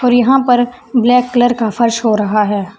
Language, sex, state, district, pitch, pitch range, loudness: Hindi, female, Uttar Pradesh, Saharanpur, 240 Hz, 220-245 Hz, -13 LUFS